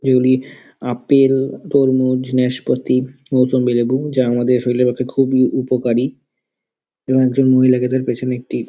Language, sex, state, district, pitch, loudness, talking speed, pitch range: Bengali, male, West Bengal, Dakshin Dinajpur, 130 Hz, -16 LUFS, 110 wpm, 125-130 Hz